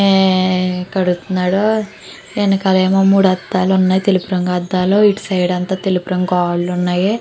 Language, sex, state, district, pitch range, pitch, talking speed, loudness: Telugu, female, Andhra Pradesh, Chittoor, 180-195 Hz, 185 Hz, 125 wpm, -15 LUFS